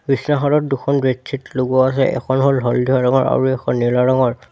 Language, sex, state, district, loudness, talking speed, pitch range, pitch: Assamese, male, Assam, Sonitpur, -17 LUFS, 175 wpm, 130-140 Hz, 130 Hz